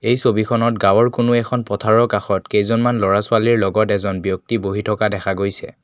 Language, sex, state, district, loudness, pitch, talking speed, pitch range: Assamese, male, Assam, Kamrup Metropolitan, -17 LUFS, 105 Hz, 165 wpm, 100-115 Hz